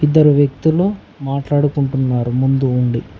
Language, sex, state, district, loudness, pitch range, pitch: Telugu, male, Telangana, Mahabubabad, -16 LUFS, 130-150 Hz, 140 Hz